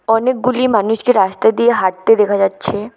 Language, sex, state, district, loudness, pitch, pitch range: Bengali, female, West Bengal, Alipurduar, -14 LUFS, 225 Hz, 200-240 Hz